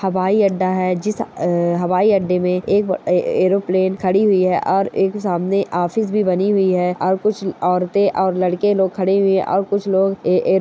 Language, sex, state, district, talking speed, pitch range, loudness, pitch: Bhojpuri, female, Bihar, Saran, 200 wpm, 180-200 Hz, -17 LUFS, 190 Hz